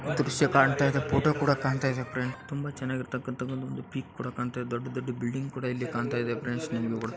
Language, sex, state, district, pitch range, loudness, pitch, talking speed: Kannada, male, Karnataka, Bijapur, 125-140 Hz, -29 LUFS, 130 Hz, 75 wpm